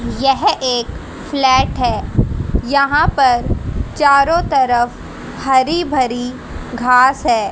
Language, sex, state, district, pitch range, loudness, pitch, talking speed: Hindi, female, Haryana, Jhajjar, 250-280 Hz, -15 LUFS, 265 Hz, 95 wpm